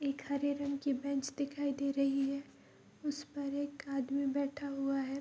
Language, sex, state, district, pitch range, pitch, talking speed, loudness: Hindi, female, Bihar, Kishanganj, 275-285 Hz, 280 Hz, 185 wpm, -37 LUFS